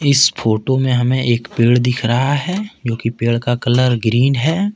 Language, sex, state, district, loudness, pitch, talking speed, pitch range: Hindi, male, Jharkhand, Ranchi, -16 LUFS, 125 Hz, 200 wpm, 120-135 Hz